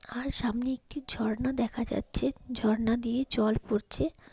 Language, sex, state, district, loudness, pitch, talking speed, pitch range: Bengali, female, West Bengal, Paschim Medinipur, -30 LUFS, 240 Hz, 150 wpm, 225-260 Hz